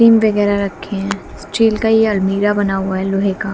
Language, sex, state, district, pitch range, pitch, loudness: Hindi, female, Haryana, Jhajjar, 195-215 Hz, 205 Hz, -16 LUFS